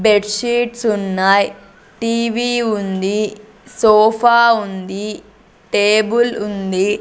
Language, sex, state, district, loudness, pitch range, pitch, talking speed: Telugu, female, Andhra Pradesh, Sri Satya Sai, -16 LUFS, 205-235 Hz, 215 Hz, 85 wpm